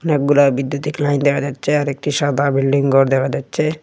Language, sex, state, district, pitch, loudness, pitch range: Bengali, male, Assam, Hailakandi, 140 Hz, -17 LUFS, 140-145 Hz